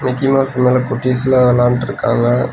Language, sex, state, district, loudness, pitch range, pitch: Tamil, male, Tamil Nadu, Nilgiris, -14 LUFS, 125-130 Hz, 125 Hz